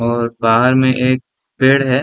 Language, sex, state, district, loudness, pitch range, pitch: Hindi, male, Bihar, Saran, -14 LUFS, 120-130 Hz, 130 Hz